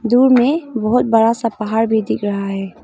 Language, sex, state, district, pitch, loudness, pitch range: Hindi, female, Arunachal Pradesh, Longding, 225 Hz, -16 LUFS, 215-245 Hz